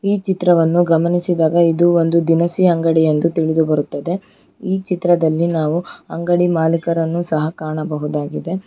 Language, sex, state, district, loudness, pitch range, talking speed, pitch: Kannada, female, Karnataka, Bangalore, -17 LUFS, 160-175 Hz, 110 wpm, 170 Hz